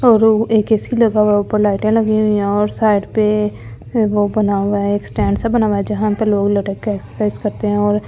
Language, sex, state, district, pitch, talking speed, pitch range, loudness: Hindi, female, Delhi, New Delhi, 210 Hz, 245 wpm, 205-215 Hz, -16 LUFS